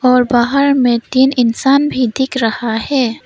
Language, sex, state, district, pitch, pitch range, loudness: Hindi, female, Arunachal Pradesh, Papum Pare, 250 Hz, 240-270 Hz, -13 LUFS